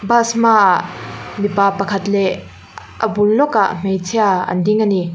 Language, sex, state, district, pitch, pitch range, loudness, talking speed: Mizo, female, Mizoram, Aizawl, 200 Hz, 195-220 Hz, -15 LUFS, 140 wpm